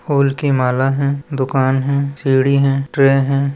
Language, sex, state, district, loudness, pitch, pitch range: Hindi, male, Chhattisgarh, Balrampur, -16 LUFS, 140 Hz, 135-140 Hz